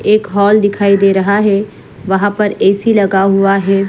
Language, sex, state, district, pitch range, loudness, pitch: Hindi, female, Punjab, Fazilka, 195-205 Hz, -12 LUFS, 200 Hz